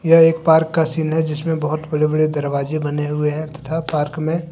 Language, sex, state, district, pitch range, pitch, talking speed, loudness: Hindi, male, Jharkhand, Deoghar, 150-160 Hz, 155 Hz, 225 wpm, -19 LUFS